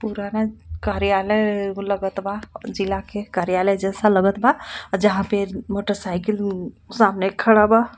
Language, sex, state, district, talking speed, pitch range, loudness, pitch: Bhojpuri, female, Jharkhand, Palamu, 130 wpm, 195-215 Hz, -21 LUFS, 200 Hz